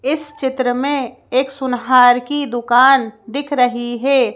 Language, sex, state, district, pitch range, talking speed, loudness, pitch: Hindi, female, Madhya Pradesh, Bhopal, 245-275 Hz, 135 wpm, -16 LUFS, 255 Hz